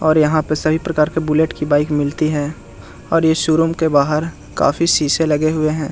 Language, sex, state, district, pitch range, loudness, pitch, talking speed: Hindi, male, Bihar, Jahanabad, 150-160 Hz, -16 LUFS, 155 Hz, 225 wpm